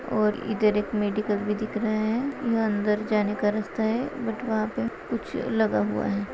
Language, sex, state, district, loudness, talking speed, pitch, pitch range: Hindi, female, Chhattisgarh, Raigarh, -26 LUFS, 200 wpm, 215 Hz, 210-220 Hz